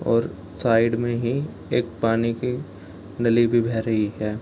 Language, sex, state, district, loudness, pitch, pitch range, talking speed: Hindi, male, Bihar, Gopalganj, -23 LUFS, 115 Hz, 105-120 Hz, 160 wpm